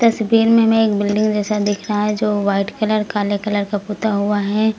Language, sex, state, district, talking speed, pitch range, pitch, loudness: Hindi, female, Uttar Pradesh, Lucknow, 225 wpm, 205-215 Hz, 210 Hz, -17 LUFS